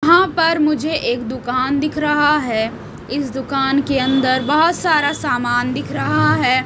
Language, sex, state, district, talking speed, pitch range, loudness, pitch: Hindi, female, Odisha, Malkangiri, 160 wpm, 245-300 Hz, -17 LUFS, 270 Hz